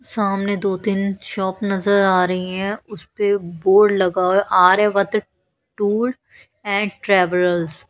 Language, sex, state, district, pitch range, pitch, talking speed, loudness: Hindi, female, Haryana, Charkhi Dadri, 185-205 Hz, 200 Hz, 130 wpm, -18 LUFS